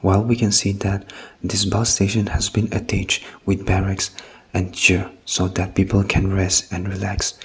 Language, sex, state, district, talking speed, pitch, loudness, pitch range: English, male, Nagaland, Kohima, 155 wpm, 95 Hz, -20 LUFS, 90-100 Hz